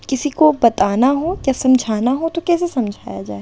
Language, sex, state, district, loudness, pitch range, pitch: Hindi, female, Delhi, New Delhi, -16 LUFS, 220-305 Hz, 260 Hz